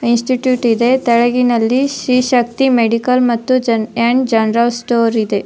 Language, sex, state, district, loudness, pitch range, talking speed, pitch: Kannada, female, Karnataka, Dharwad, -14 LUFS, 230-255 Hz, 130 wpm, 240 Hz